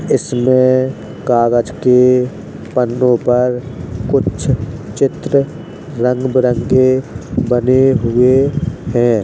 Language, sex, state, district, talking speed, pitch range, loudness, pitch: Hindi, male, Uttar Pradesh, Jalaun, 70 wpm, 120-130 Hz, -14 LUFS, 125 Hz